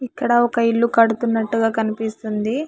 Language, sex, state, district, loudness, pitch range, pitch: Telugu, female, Telangana, Hyderabad, -19 LUFS, 225-240 Hz, 230 Hz